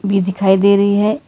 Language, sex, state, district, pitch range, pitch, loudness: Hindi, female, Karnataka, Bangalore, 190-200 Hz, 200 Hz, -13 LUFS